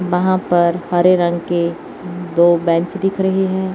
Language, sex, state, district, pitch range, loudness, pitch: Hindi, male, Chandigarh, Chandigarh, 170-185 Hz, -16 LUFS, 180 Hz